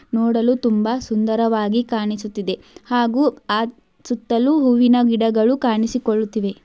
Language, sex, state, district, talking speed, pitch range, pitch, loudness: Kannada, female, Karnataka, Belgaum, 90 wpm, 220-245 Hz, 230 Hz, -19 LUFS